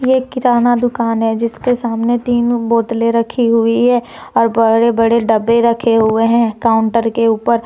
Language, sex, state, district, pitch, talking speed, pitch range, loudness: Hindi, female, Jharkhand, Deoghar, 230 Hz, 165 wpm, 230-240 Hz, -14 LUFS